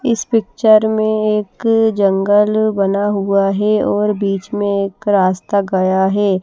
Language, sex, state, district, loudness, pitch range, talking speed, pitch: Hindi, female, Himachal Pradesh, Shimla, -15 LUFS, 195-215 Hz, 140 wpm, 205 Hz